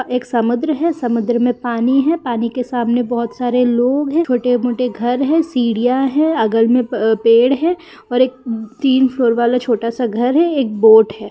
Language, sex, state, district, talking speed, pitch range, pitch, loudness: Hindi, female, Jharkhand, Sahebganj, 185 wpm, 235-265 Hz, 245 Hz, -15 LUFS